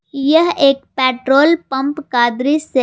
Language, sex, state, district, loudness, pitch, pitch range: Hindi, female, Jharkhand, Garhwa, -14 LUFS, 275 Hz, 265-305 Hz